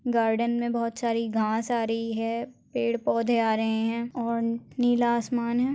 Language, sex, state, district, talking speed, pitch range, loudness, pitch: Hindi, female, Maharashtra, Aurangabad, 180 wpm, 225-240 Hz, -27 LUFS, 235 Hz